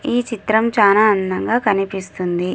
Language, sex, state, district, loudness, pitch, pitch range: Telugu, female, Andhra Pradesh, Anantapur, -17 LUFS, 205 Hz, 190-225 Hz